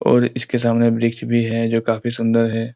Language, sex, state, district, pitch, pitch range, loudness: Hindi, male, Bihar, Araria, 115 Hz, 115-120 Hz, -19 LUFS